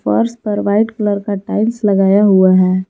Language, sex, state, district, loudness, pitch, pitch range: Hindi, female, Jharkhand, Garhwa, -14 LUFS, 205 Hz, 195-210 Hz